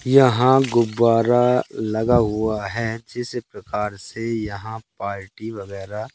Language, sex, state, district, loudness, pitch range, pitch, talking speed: Hindi, male, Madhya Pradesh, Katni, -21 LUFS, 105-120 Hz, 115 Hz, 105 wpm